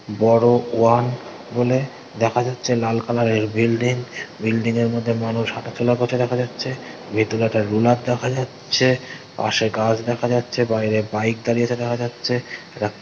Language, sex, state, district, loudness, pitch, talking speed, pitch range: Bengali, male, West Bengal, North 24 Parganas, -20 LUFS, 120 Hz, 150 wpm, 115-125 Hz